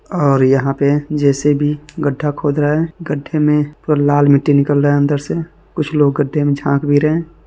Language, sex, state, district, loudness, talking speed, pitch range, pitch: Hindi, male, Bihar, Muzaffarpur, -15 LUFS, 210 wpm, 145-150 Hz, 145 Hz